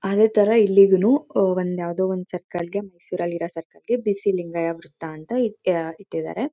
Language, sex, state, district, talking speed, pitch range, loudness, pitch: Kannada, female, Karnataka, Mysore, 130 wpm, 170-205 Hz, -22 LUFS, 185 Hz